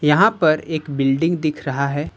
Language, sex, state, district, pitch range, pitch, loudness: Hindi, male, Uttar Pradesh, Lucknow, 140-160 Hz, 155 Hz, -19 LUFS